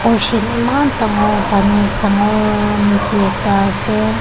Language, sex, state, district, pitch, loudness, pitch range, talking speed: Nagamese, female, Nagaland, Kohima, 205 Hz, -14 LUFS, 195-210 Hz, 115 wpm